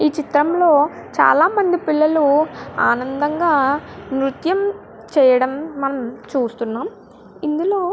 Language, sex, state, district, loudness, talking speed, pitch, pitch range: Telugu, female, Andhra Pradesh, Guntur, -18 LUFS, 100 wpm, 290 Hz, 265-320 Hz